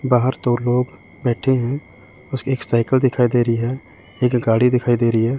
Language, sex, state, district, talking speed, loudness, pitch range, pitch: Hindi, male, Chandigarh, Chandigarh, 200 wpm, -19 LUFS, 120-130 Hz, 125 Hz